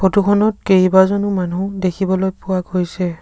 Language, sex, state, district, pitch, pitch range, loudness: Assamese, male, Assam, Sonitpur, 190 Hz, 185-200 Hz, -16 LUFS